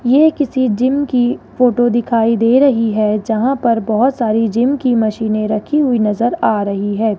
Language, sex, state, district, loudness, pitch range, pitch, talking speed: Hindi, male, Rajasthan, Jaipur, -15 LUFS, 220-255 Hz, 235 Hz, 185 wpm